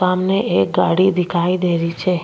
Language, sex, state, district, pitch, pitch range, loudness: Rajasthani, female, Rajasthan, Nagaur, 180 Hz, 170-185 Hz, -17 LUFS